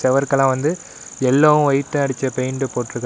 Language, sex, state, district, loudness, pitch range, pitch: Tamil, male, Tamil Nadu, Namakkal, -18 LUFS, 130-140 Hz, 135 Hz